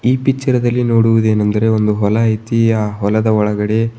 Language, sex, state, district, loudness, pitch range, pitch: Kannada, male, Karnataka, Bidar, -14 LUFS, 105-115 Hz, 110 Hz